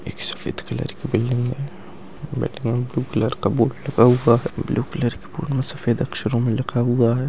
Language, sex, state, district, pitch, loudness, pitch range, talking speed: Angika, male, Bihar, Madhepura, 120 Hz, -21 LUFS, 115-130 Hz, 190 wpm